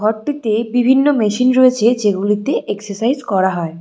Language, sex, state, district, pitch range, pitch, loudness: Bengali, female, West Bengal, Cooch Behar, 205-255 Hz, 225 Hz, -15 LUFS